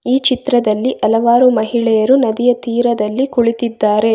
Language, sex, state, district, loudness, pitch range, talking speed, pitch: Kannada, female, Karnataka, Bangalore, -14 LUFS, 225-250 Hz, 100 wpm, 235 Hz